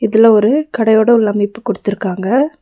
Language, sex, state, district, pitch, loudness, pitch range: Tamil, female, Tamil Nadu, Nilgiris, 220 Hz, -13 LUFS, 205-235 Hz